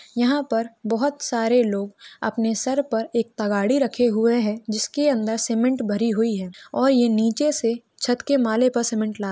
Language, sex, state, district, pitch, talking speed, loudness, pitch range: Hindi, female, Chhattisgarh, Bilaspur, 230 Hz, 180 wpm, -22 LUFS, 220-255 Hz